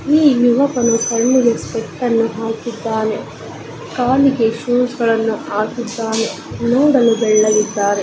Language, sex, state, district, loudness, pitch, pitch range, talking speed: Kannada, male, Karnataka, Dakshina Kannada, -16 LUFS, 230 Hz, 225-245 Hz, 90 wpm